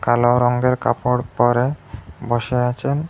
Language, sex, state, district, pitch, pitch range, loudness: Bengali, male, Assam, Hailakandi, 125 Hz, 120-125 Hz, -19 LUFS